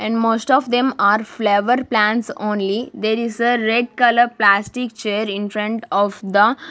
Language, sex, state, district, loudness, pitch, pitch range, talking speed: English, female, Maharashtra, Gondia, -18 LUFS, 225 Hz, 210-240 Hz, 170 wpm